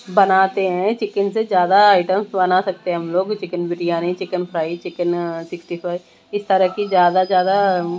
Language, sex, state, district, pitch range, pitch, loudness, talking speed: Hindi, female, Odisha, Malkangiri, 175-195 Hz, 185 Hz, -18 LUFS, 175 wpm